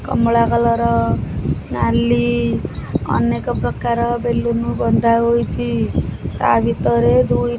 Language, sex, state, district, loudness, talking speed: Odia, male, Odisha, Khordha, -17 LUFS, 85 wpm